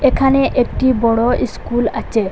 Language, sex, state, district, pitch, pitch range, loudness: Bengali, female, Assam, Hailakandi, 240 Hz, 230-260 Hz, -16 LUFS